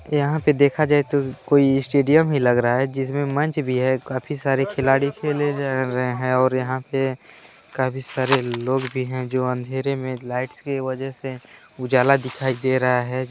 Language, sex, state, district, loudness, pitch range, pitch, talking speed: Hindi, male, Chhattisgarh, Balrampur, -21 LUFS, 130-140 Hz, 130 Hz, 205 wpm